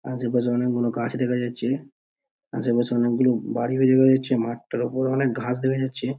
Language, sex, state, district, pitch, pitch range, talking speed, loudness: Bengali, male, West Bengal, Purulia, 125 Hz, 120-130 Hz, 165 wpm, -23 LUFS